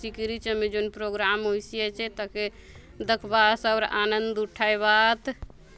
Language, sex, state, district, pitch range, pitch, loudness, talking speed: Halbi, female, Chhattisgarh, Bastar, 210-225 Hz, 215 Hz, -25 LUFS, 135 wpm